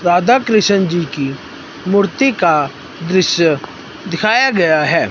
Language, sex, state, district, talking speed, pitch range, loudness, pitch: Hindi, male, Himachal Pradesh, Shimla, 105 wpm, 155-200 Hz, -14 LUFS, 175 Hz